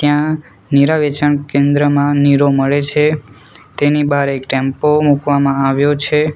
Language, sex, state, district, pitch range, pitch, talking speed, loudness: Gujarati, male, Gujarat, Valsad, 140-150 Hz, 145 Hz, 130 wpm, -14 LUFS